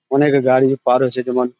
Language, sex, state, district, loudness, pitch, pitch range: Bengali, male, West Bengal, Malda, -16 LUFS, 130 Hz, 125-135 Hz